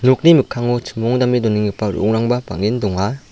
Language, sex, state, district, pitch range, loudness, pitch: Garo, male, Meghalaya, South Garo Hills, 105-125 Hz, -17 LUFS, 120 Hz